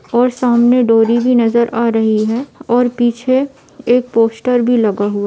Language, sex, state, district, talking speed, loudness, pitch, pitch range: Hindi, female, Bihar, East Champaran, 180 wpm, -13 LUFS, 240 Hz, 225-245 Hz